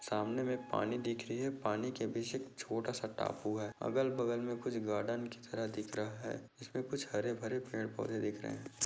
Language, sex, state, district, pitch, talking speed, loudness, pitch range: Hindi, male, Chhattisgarh, Korba, 120 Hz, 215 wpm, -39 LUFS, 110-130 Hz